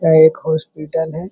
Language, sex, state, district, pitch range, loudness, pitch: Hindi, male, Uttar Pradesh, Hamirpur, 160-165 Hz, -16 LUFS, 160 Hz